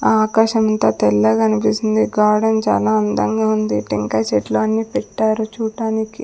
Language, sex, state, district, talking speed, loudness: Telugu, female, Andhra Pradesh, Sri Satya Sai, 125 wpm, -17 LUFS